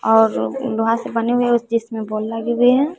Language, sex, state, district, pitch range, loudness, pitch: Hindi, female, Bihar, West Champaran, 225-245 Hz, -18 LUFS, 230 Hz